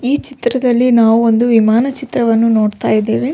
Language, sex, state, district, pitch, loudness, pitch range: Kannada, female, Karnataka, Belgaum, 235 Hz, -13 LUFS, 225-250 Hz